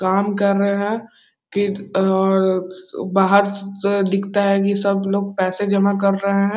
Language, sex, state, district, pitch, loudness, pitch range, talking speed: Hindi, male, Bihar, Muzaffarpur, 200 Hz, -19 LUFS, 195-200 Hz, 165 wpm